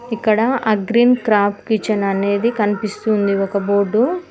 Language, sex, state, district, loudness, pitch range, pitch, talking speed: Telugu, female, Telangana, Mahabubabad, -17 LUFS, 200-235 Hz, 215 Hz, 125 wpm